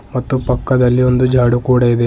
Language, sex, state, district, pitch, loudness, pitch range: Kannada, male, Karnataka, Bidar, 125 Hz, -14 LUFS, 120-130 Hz